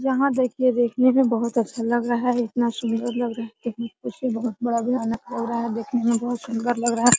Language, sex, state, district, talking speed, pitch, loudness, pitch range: Hindi, female, Bihar, Araria, 250 wpm, 240 Hz, -23 LUFS, 230-245 Hz